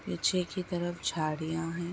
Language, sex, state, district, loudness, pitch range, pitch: Hindi, female, Uttar Pradesh, Etah, -32 LUFS, 165-180 Hz, 175 Hz